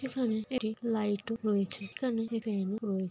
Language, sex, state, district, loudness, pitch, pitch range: Bengali, female, West Bengal, North 24 Parganas, -33 LUFS, 220 Hz, 205-230 Hz